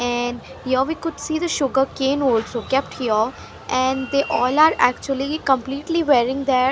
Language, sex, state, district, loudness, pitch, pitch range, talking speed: English, female, Haryana, Rohtak, -20 LUFS, 270 Hz, 255-285 Hz, 160 wpm